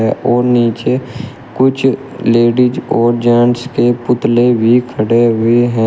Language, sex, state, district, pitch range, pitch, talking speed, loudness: Hindi, male, Uttar Pradesh, Shamli, 115-125 Hz, 120 Hz, 125 wpm, -12 LUFS